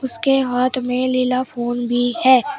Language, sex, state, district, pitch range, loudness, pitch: Hindi, female, Uttar Pradesh, Shamli, 245-260 Hz, -18 LUFS, 255 Hz